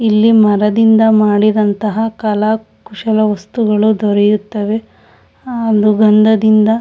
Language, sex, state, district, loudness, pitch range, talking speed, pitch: Kannada, female, Karnataka, Shimoga, -12 LUFS, 210-220 Hz, 80 wpm, 215 Hz